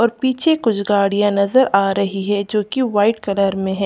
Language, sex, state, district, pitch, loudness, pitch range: Hindi, female, Delhi, New Delhi, 205 Hz, -17 LUFS, 200-235 Hz